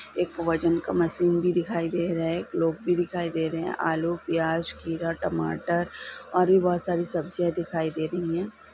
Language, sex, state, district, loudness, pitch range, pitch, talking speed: Hindi, female, Bihar, Lakhisarai, -27 LUFS, 165-175 Hz, 170 Hz, 190 wpm